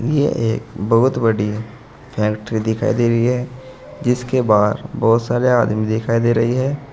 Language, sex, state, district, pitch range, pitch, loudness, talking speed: Hindi, male, Uttar Pradesh, Saharanpur, 110-130 Hz, 120 Hz, -18 LUFS, 155 wpm